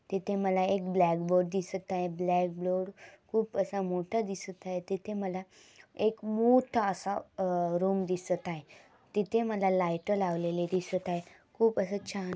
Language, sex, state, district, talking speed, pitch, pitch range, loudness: Marathi, female, Maharashtra, Dhule, 155 wpm, 190 Hz, 180-200 Hz, -31 LUFS